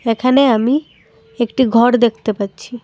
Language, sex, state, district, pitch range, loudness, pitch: Bengali, female, Tripura, Dhalai, 215-255 Hz, -15 LUFS, 235 Hz